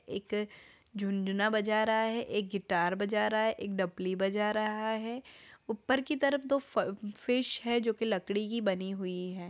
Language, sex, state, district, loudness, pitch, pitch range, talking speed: Hindi, female, Bihar, Araria, -32 LUFS, 210 Hz, 195-225 Hz, 185 wpm